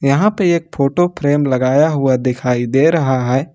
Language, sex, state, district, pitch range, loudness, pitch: Hindi, male, Jharkhand, Ranchi, 130-165 Hz, -15 LUFS, 140 Hz